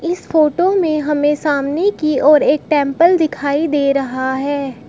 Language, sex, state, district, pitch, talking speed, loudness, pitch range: Hindi, female, Uttar Pradesh, Shamli, 295 Hz, 160 wpm, -15 LUFS, 280-320 Hz